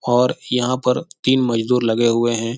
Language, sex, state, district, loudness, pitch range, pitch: Hindi, male, Bihar, Jahanabad, -18 LUFS, 115-125 Hz, 120 Hz